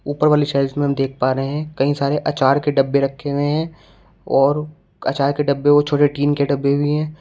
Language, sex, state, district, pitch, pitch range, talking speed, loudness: Hindi, male, Uttar Pradesh, Shamli, 145 Hz, 140-145 Hz, 235 wpm, -18 LUFS